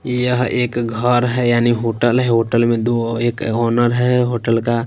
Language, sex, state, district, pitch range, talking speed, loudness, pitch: Hindi, male, Punjab, Kapurthala, 115-125 Hz, 185 wpm, -17 LUFS, 120 Hz